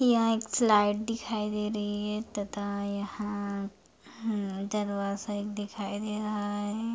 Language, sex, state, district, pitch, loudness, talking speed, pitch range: Hindi, female, Bihar, Bhagalpur, 210 Hz, -31 LUFS, 130 wpm, 205-215 Hz